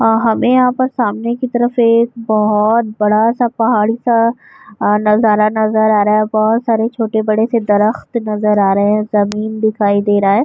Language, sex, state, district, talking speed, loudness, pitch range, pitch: Urdu, female, Uttar Pradesh, Budaun, 190 wpm, -14 LUFS, 210-230 Hz, 220 Hz